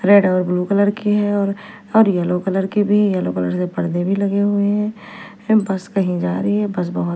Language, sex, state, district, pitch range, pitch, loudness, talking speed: Hindi, female, Punjab, Fazilka, 180-205 Hz, 200 Hz, -18 LUFS, 235 wpm